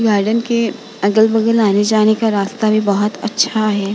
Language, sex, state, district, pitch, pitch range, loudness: Hindi, female, Bihar, Vaishali, 215 Hz, 205-225 Hz, -15 LUFS